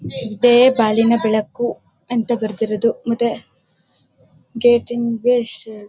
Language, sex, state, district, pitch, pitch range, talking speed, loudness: Kannada, female, Karnataka, Bellary, 230 Hz, 220-240 Hz, 90 wpm, -17 LUFS